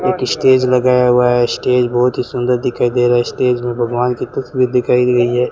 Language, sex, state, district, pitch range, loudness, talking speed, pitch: Hindi, male, Rajasthan, Bikaner, 120-125 Hz, -14 LUFS, 230 wpm, 125 Hz